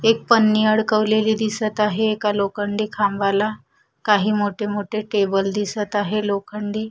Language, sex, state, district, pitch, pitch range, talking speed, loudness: Marathi, female, Maharashtra, Washim, 210 Hz, 205-215 Hz, 130 wpm, -20 LUFS